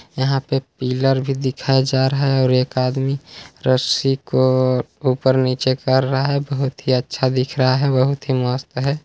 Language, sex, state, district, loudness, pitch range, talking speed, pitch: Hindi, male, Chhattisgarh, Balrampur, -19 LUFS, 130-135 Hz, 185 wpm, 130 Hz